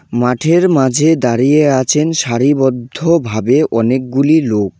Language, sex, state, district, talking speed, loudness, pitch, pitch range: Bengali, male, West Bengal, Cooch Behar, 85 wpm, -13 LUFS, 130 Hz, 120-155 Hz